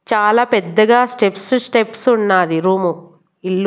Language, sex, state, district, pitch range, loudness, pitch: Telugu, female, Andhra Pradesh, Annamaya, 185-235 Hz, -15 LUFS, 205 Hz